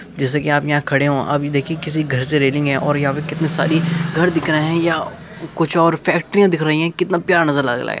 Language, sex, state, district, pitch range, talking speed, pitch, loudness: Hindi, male, Uttar Pradesh, Muzaffarnagar, 145-165 Hz, 270 wpm, 155 Hz, -17 LUFS